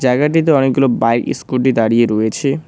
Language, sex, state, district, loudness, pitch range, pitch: Bengali, male, West Bengal, Cooch Behar, -14 LUFS, 115-140 Hz, 130 Hz